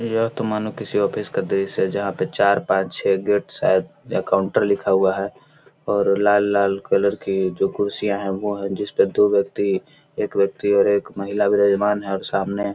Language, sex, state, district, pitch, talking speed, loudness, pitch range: Hindi, male, Bihar, Gaya, 100 Hz, 205 wpm, -21 LUFS, 95-105 Hz